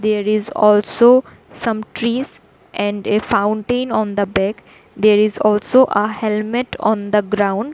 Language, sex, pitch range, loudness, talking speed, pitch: English, female, 205-230 Hz, -16 LUFS, 145 wpm, 215 Hz